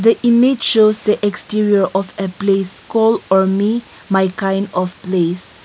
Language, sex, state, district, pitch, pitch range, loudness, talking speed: English, female, Nagaland, Kohima, 200 Hz, 190-215 Hz, -16 LUFS, 150 wpm